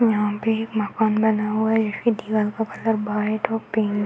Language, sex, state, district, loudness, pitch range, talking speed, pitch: Hindi, female, Uttar Pradesh, Varanasi, -22 LUFS, 210-225 Hz, 235 wpm, 220 Hz